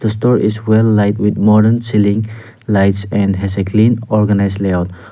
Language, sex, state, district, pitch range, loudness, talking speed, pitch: English, male, Nagaland, Dimapur, 100-110 Hz, -13 LUFS, 175 wpm, 105 Hz